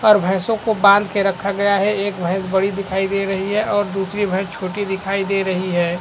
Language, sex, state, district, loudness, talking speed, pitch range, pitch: Hindi, female, Chhattisgarh, Korba, -18 LUFS, 230 wpm, 190-205 Hz, 195 Hz